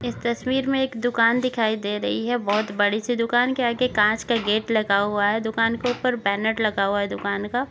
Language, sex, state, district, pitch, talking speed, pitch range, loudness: Hindi, female, Chhattisgarh, Jashpur, 225 Hz, 240 wpm, 210-245 Hz, -22 LUFS